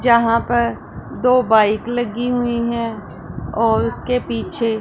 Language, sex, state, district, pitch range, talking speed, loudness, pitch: Hindi, female, Punjab, Pathankot, 225-240 Hz, 125 wpm, -18 LUFS, 235 Hz